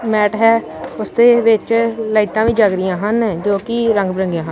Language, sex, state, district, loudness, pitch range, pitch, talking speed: Punjabi, female, Punjab, Kapurthala, -15 LUFS, 200-230 Hz, 220 Hz, 170 wpm